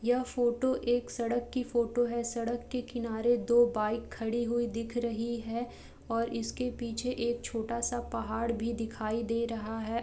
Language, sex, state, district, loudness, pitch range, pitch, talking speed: Hindi, female, Bihar, Gaya, -32 LUFS, 230-240 Hz, 235 Hz, 175 wpm